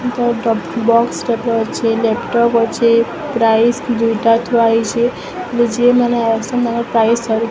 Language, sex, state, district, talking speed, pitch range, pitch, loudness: Odia, female, Odisha, Sambalpur, 135 wpm, 230-240 Hz, 235 Hz, -15 LUFS